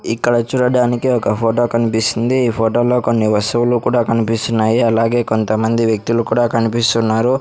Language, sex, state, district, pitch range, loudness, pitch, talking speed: Telugu, male, Andhra Pradesh, Sri Satya Sai, 115-120 Hz, -15 LUFS, 115 Hz, 130 wpm